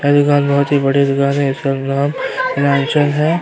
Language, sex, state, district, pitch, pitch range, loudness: Hindi, male, Uttar Pradesh, Hamirpur, 140 Hz, 140-145 Hz, -15 LUFS